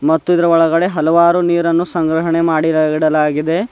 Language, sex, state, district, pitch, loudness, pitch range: Kannada, male, Karnataka, Bidar, 165 Hz, -14 LUFS, 155-170 Hz